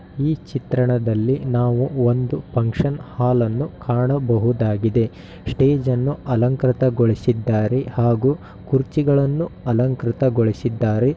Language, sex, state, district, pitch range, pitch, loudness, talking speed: Kannada, male, Karnataka, Shimoga, 120-135 Hz, 125 Hz, -20 LUFS, 65 wpm